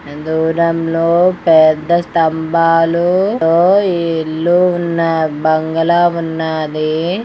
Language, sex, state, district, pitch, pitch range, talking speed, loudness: Telugu, female, Andhra Pradesh, Guntur, 165 Hz, 160-170 Hz, 75 wpm, -13 LUFS